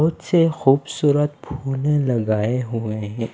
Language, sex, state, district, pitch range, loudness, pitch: Hindi, male, Bihar, Patna, 115-145 Hz, -20 LUFS, 135 Hz